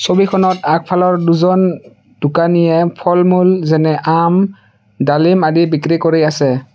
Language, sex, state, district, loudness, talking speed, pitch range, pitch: Assamese, male, Assam, Sonitpur, -13 LUFS, 105 wpm, 155-180 Hz, 170 Hz